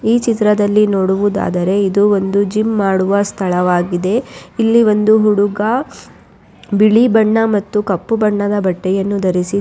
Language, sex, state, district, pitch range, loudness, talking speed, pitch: Kannada, female, Karnataka, Raichur, 195-215 Hz, -14 LUFS, 110 wpm, 205 Hz